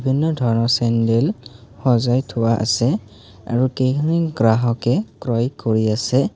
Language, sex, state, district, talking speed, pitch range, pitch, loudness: Assamese, male, Assam, Kamrup Metropolitan, 115 wpm, 115-130 Hz, 120 Hz, -19 LUFS